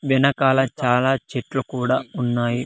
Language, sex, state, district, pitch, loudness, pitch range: Telugu, male, Andhra Pradesh, Sri Satya Sai, 130 Hz, -21 LUFS, 125-135 Hz